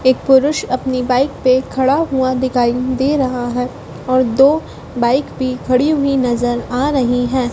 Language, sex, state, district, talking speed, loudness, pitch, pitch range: Hindi, female, Madhya Pradesh, Dhar, 165 wpm, -15 LUFS, 255 Hz, 250-265 Hz